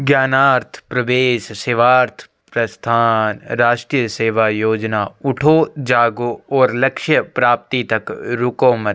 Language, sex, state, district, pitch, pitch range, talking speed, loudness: Hindi, male, Chhattisgarh, Korba, 120 Hz, 115-130 Hz, 105 wpm, -16 LUFS